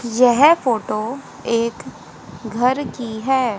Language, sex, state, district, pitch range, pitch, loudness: Hindi, female, Haryana, Rohtak, 225-255 Hz, 235 Hz, -18 LUFS